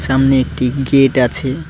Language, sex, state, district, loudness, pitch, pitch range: Bengali, male, West Bengal, Cooch Behar, -14 LUFS, 135 Hz, 130-135 Hz